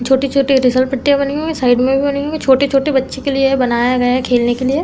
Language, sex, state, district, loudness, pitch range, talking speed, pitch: Hindi, female, Uttar Pradesh, Deoria, -14 LUFS, 255-280 Hz, 285 wpm, 270 Hz